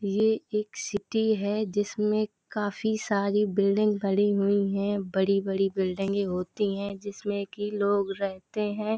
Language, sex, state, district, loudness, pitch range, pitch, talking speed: Hindi, female, Uttar Pradesh, Hamirpur, -27 LUFS, 195-210 Hz, 205 Hz, 140 wpm